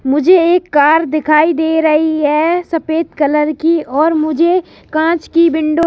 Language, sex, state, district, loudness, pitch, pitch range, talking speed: Hindi, male, Madhya Pradesh, Bhopal, -13 LUFS, 315 Hz, 305-335 Hz, 165 wpm